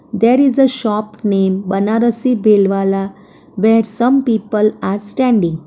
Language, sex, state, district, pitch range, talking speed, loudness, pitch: English, female, Gujarat, Valsad, 195-235 Hz, 135 wpm, -14 LUFS, 215 Hz